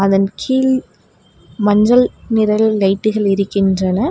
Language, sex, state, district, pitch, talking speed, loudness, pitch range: Tamil, female, Tamil Nadu, Namakkal, 210 Hz, 85 wpm, -15 LUFS, 195-225 Hz